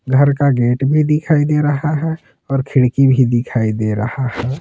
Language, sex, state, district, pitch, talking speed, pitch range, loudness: Hindi, male, Jharkhand, Palamu, 135 Hz, 195 wpm, 125-150 Hz, -15 LUFS